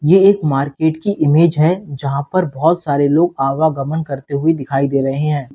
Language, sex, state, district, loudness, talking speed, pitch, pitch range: Hindi, male, Uttar Pradesh, Lalitpur, -16 LUFS, 205 wpm, 150 Hz, 140-165 Hz